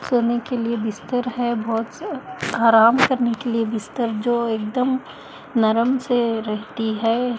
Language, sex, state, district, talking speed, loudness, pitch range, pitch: Hindi, female, Delhi, New Delhi, 145 wpm, -21 LUFS, 225-245 Hz, 235 Hz